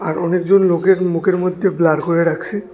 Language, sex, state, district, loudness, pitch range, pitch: Bengali, male, Tripura, West Tripura, -16 LUFS, 170-190 Hz, 180 Hz